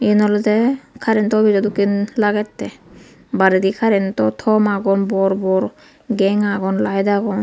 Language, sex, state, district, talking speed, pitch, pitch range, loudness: Chakma, female, Tripura, Unakoti, 130 wpm, 205 Hz, 195-215 Hz, -17 LUFS